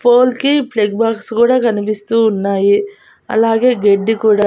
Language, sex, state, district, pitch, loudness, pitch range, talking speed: Telugu, female, Andhra Pradesh, Annamaya, 225 Hz, -14 LUFS, 210-250 Hz, 135 wpm